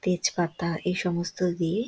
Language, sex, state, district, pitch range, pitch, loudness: Bengali, female, West Bengal, Dakshin Dinajpur, 170-185 Hz, 180 Hz, -27 LUFS